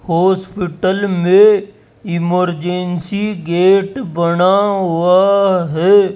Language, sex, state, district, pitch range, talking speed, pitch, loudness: Hindi, male, Rajasthan, Jaipur, 175-200 Hz, 70 wpm, 185 Hz, -14 LUFS